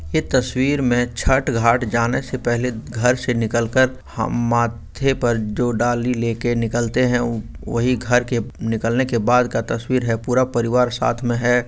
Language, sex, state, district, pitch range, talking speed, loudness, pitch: Hindi, male, Jharkhand, Sahebganj, 115-125 Hz, 160 wpm, -20 LUFS, 120 Hz